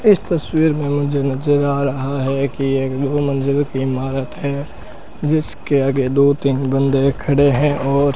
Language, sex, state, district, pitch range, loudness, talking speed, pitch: Hindi, male, Rajasthan, Bikaner, 135-145 Hz, -18 LUFS, 175 wpm, 140 Hz